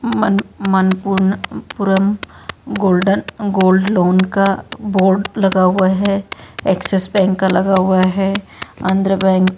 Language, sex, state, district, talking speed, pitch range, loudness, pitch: Hindi, female, Rajasthan, Jaipur, 125 wpm, 190-200 Hz, -15 LUFS, 195 Hz